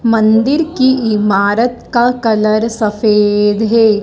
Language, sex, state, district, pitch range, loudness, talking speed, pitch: Hindi, female, Madhya Pradesh, Dhar, 210-240 Hz, -12 LUFS, 105 wpm, 220 Hz